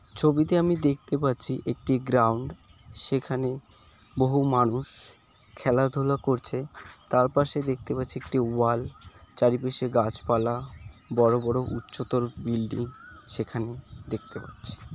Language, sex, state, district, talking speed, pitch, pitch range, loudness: Bengali, male, West Bengal, Jalpaiguri, 110 wpm, 125 Hz, 115-130 Hz, -26 LUFS